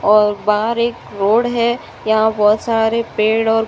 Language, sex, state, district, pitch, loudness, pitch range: Hindi, female, Uttar Pradesh, Muzaffarnagar, 220 Hz, -16 LUFS, 210-230 Hz